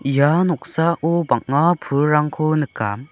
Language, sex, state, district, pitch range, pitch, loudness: Garo, male, Meghalaya, South Garo Hills, 140-170 Hz, 150 Hz, -19 LUFS